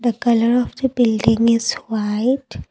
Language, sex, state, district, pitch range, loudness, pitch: English, female, Assam, Kamrup Metropolitan, 225-245 Hz, -18 LUFS, 235 Hz